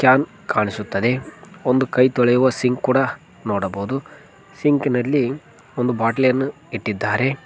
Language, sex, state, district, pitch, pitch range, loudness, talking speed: Kannada, male, Karnataka, Koppal, 130 Hz, 120-140 Hz, -20 LUFS, 115 wpm